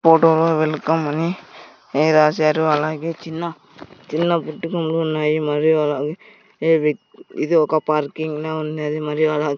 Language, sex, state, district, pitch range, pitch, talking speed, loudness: Telugu, male, Andhra Pradesh, Sri Satya Sai, 150-165 Hz, 155 Hz, 120 wpm, -19 LUFS